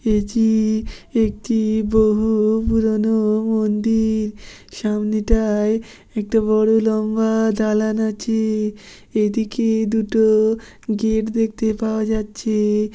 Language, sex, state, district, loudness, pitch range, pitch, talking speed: Bengali, female, West Bengal, Jhargram, -19 LUFS, 215-220 Hz, 220 Hz, 80 wpm